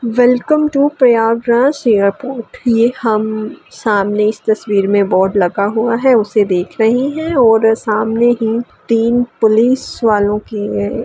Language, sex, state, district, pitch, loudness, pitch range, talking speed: Hindi, female, Uttar Pradesh, Varanasi, 225 Hz, -13 LUFS, 210-245 Hz, 140 wpm